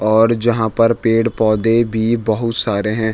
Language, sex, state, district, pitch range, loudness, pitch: Hindi, male, Uttarakhand, Tehri Garhwal, 110-115 Hz, -16 LUFS, 115 Hz